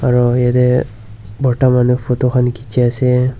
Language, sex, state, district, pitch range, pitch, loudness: Nagamese, male, Nagaland, Dimapur, 120-125 Hz, 125 Hz, -14 LUFS